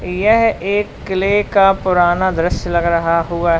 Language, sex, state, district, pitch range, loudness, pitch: Hindi, male, Uttar Pradesh, Lalitpur, 170-200 Hz, -15 LUFS, 185 Hz